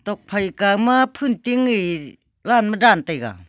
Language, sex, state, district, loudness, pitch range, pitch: Wancho, female, Arunachal Pradesh, Longding, -18 LUFS, 175-240 Hz, 205 Hz